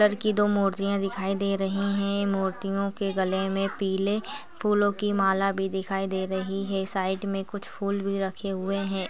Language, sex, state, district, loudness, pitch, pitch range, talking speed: Hindi, female, Uttar Pradesh, Ghazipur, -27 LUFS, 195 Hz, 195-200 Hz, 190 wpm